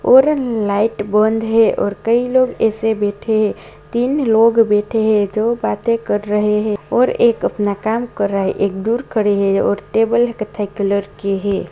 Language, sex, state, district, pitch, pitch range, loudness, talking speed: Bhojpuri, female, Bihar, Saran, 215 Hz, 205-230 Hz, -16 LUFS, 195 wpm